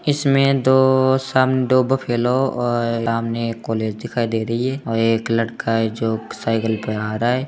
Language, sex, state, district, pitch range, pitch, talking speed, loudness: Hindi, male, Bihar, Samastipur, 115-130 Hz, 115 Hz, 190 wpm, -19 LUFS